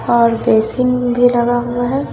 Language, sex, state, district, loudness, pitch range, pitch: Hindi, female, Bihar, West Champaran, -14 LUFS, 240-245 Hz, 240 Hz